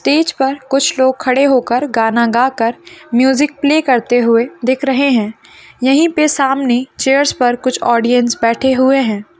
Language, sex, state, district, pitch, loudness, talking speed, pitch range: Hindi, female, Bihar, Madhepura, 260 Hz, -13 LUFS, 160 wpm, 240-280 Hz